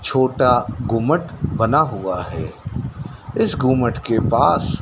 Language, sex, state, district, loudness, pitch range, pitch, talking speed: Hindi, male, Madhya Pradesh, Dhar, -19 LUFS, 115-140 Hz, 125 Hz, 125 wpm